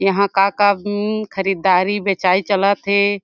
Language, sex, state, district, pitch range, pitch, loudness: Chhattisgarhi, female, Chhattisgarh, Jashpur, 195-205 Hz, 200 Hz, -17 LUFS